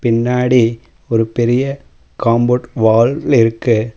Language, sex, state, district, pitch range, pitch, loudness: Tamil, male, Tamil Nadu, Namakkal, 115-125 Hz, 120 Hz, -14 LUFS